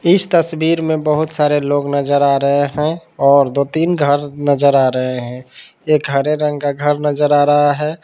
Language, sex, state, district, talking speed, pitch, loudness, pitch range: Hindi, male, Jharkhand, Palamu, 200 wpm, 145 Hz, -15 LUFS, 140-155 Hz